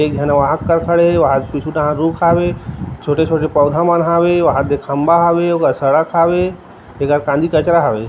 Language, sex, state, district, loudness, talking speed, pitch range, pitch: Chhattisgarhi, male, Chhattisgarh, Rajnandgaon, -14 LUFS, 200 wpm, 145-170 Hz, 160 Hz